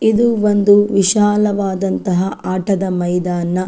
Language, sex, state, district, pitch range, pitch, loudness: Kannada, female, Karnataka, Chamarajanagar, 185-210 Hz, 195 Hz, -15 LUFS